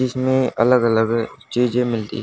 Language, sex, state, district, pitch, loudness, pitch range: Hindi, male, Haryana, Charkhi Dadri, 120 Hz, -19 LUFS, 115-125 Hz